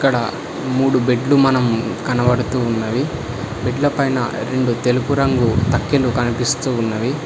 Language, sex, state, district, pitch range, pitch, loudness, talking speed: Telugu, male, Telangana, Hyderabad, 120-135 Hz, 125 Hz, -18 LUFS, 105 wpm